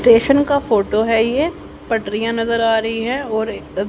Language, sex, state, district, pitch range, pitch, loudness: Hindi, female, Haryana, Rohtak, 220-250 Hz, 230 Hz, -17 LUFS